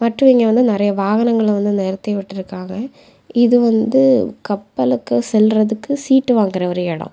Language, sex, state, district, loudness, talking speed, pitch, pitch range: Tamil, female, Tamil Nadu, Kanyakumari, -16 LUFS, 125 wpm, 215 Hz, 195-240 Hz